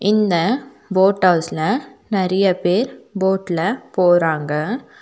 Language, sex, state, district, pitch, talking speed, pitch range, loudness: Tamil, female, Tamil Nadu, Nilgiris, 190 Hz, 85 wpm, 175-215 Hz, -18 LUFS